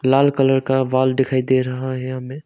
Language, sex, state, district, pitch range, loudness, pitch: Hindi, male, Arunachal Pradesh, Longding, 130-135 Hz, -18 LUFS, 130 Hz